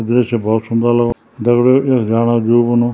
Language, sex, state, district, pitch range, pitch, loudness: Garhwali, male, Uttarakhand, Tehri Garhwal, 115-120 Hz, 120 Hz, -14 LUFS